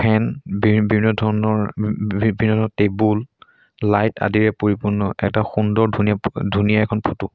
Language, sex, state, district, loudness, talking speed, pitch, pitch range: Assamese, male, Assam, Sonitpur, -19 LUFS, 120 wpm, 105 Hz, 105-110 Hz